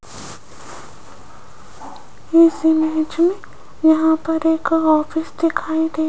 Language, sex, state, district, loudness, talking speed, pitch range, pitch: Hindi, female, Rajasthan, Jaipur, -17 LUFS, 100 wpm, 315-325 Hz, 320 Hz